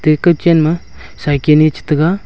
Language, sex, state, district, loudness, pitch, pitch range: Wancho, male, Arunachal Pradesh, Longding, -13 LUFS, 155 Hz, 150-170 Hz